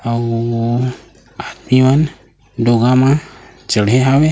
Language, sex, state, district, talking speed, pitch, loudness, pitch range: Chhattisgarhi, male, Chhattisgarh, Raigarh, 95 wpm, 125 Hz, -14 LUFS, 115-135 Hz